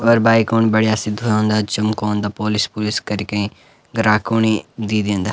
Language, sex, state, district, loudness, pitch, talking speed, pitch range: Garhwali, male, Uttarakhand, Uttarkashi, -18 LUFS, 105 Hz, 135 wpm, 105-110 Hz